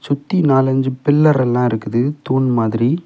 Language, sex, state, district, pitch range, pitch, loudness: Tamil, male, Tamil Nadu, Kanyakumari, 125-145 Hz, 130 Hz, -16 LUFS